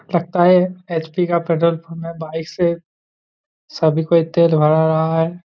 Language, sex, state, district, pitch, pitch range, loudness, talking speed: Hindi, male, Jharkhand, Jamtara, 170 Hz, 160-175 Hz, -17 LUFS, 160 wpm